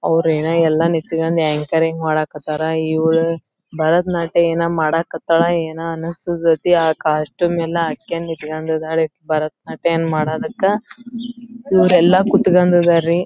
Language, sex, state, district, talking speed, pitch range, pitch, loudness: Kannada, female, Karnataka, Belgaum, 105 wpm, 160-175 Hz, 165 Hz, -17 LUFS